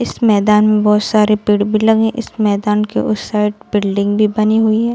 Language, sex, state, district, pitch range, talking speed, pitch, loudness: Hindi, female, Bihar, Darbhanga, 210-220 Hz, 220 wpm, 210 Hz, -14 LUFS